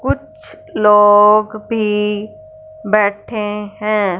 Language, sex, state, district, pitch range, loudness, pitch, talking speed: Hindi, female, Punjab, Fazilka, 210-215 Hz, -14 LUFS, 210 Hz, 70 wpm